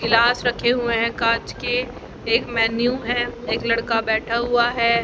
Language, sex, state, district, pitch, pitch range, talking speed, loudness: Hindi, female, Haryana, Rohtak, 235 Hz, 230-240 Hz, 165 wpm, -20 LUFS